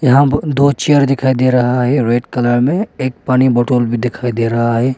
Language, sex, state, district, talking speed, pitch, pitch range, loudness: Hindi, male, Arunachal Pradesh, Longding, 215 wpm, 130 Hz, 120-135 Hz, -14 LUFS